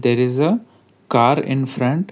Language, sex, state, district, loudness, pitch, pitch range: English, male, Karnataka, Bangalore, -18 LUFS, 135 Hz, 125-170 Hz